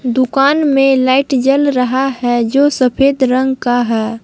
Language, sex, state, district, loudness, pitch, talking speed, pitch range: Hindi, female, Jharkhand, Palamu, -13 LUFS, 260 Hz, 155 wpm, 250-275 Hz